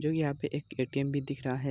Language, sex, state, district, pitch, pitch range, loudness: Hindi, male, Bihar, Araria, 140 Hz, 135-145 Hz, -33 LUFS